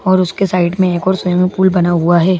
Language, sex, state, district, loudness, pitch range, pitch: Hindi, male, Madhya Pradesh, Bhopal, -13 LUFS, 175-185 Hz, 180 Hz